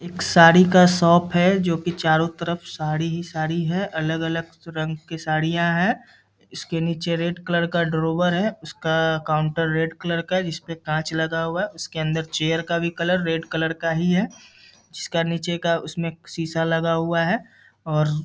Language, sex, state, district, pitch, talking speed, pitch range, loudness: Hindi, male, Bihar, Muzaffarpur, 165 Hz, 180 wpm, 160-170 Hz, -22 LUFS